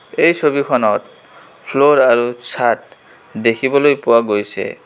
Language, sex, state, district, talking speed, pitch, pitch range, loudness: Assamese, male, Assam, Kamrup Metropolitan, 100 wpm, 135 Hz, 115-145 Hz, -15 LUFS